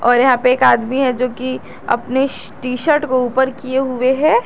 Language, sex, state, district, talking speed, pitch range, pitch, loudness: Hindi, female, Jharkhand, Garhwa, 215 wpm, 250-265 Hz, 255 Hz, -16 LUFS